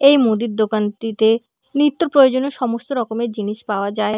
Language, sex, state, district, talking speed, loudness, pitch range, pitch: Bengali, female, West Bengal, Purulia, 145 wpm, -18 LUFS, 215-265 Hz, 230 Hz